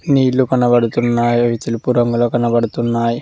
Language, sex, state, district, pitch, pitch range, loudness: Telugu, male, Telangana, Mahabubabad, 120 Hz, 120-125 Hz, -15 LUFS